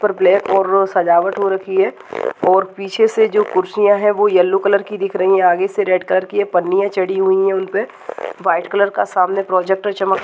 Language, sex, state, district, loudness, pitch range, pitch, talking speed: Hindi, female, Bihar, Saharsa, -16 LUFS, 190-205 Hz, 195 Hz, 225 wpm